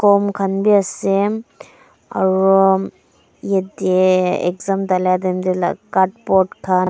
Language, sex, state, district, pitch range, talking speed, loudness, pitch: Nagamese, female, Nagaland, Dimapur, 185-195 Hz, 115 wpm, -17 LUFS, 190 Hz